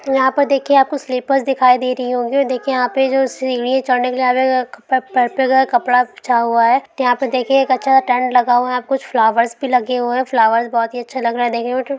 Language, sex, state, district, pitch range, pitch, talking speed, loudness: Hindi, female, Bihar, Lakhisarai, 245-265 Hz, 255 Hz, 235 wpm, -16 LUFS